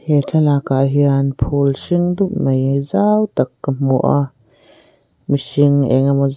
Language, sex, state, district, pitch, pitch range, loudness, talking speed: Mizo, female, Mizoram, Aizawl, 140 Hz, 135-145 Hz, -16 LUFS, 150 wpm